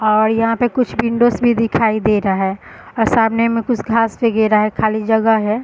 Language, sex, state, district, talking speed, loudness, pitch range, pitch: Hindi, female, Bihar, Sitamarhi, 215 wpm, -16 LUFS, 215-230 Hz, 225 Hz